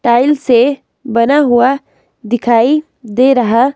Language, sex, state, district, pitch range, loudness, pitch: Hindi, female, Himachal Pradesh, Shimla, 235-275 Hz, -12 LUFS, 250 Hz